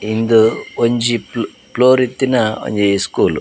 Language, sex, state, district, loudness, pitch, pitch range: Tulu, male, Karnataka, Dakshina Kannada, -15 LUFS, 115 Hz, 110-125 Hz